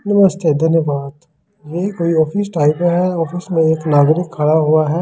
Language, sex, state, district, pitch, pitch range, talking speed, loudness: Hindi, male, Delhi, New Delhi, 165 Hz, 155-175 Hz, 165 wpm, -15 LUFS